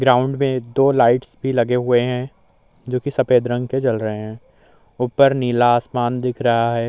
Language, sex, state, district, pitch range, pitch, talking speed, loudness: Hindi, male, Uttar Pradesh, Muzaffarnagar, 120-130 Hz, 125 Hz, 185 wpm, -18 LUFS